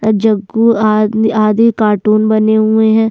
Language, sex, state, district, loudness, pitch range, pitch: Hindi, female, Uttarakhand, Tehri Garhwal, -11 LUFS, 215-220 Hz, 220 Hz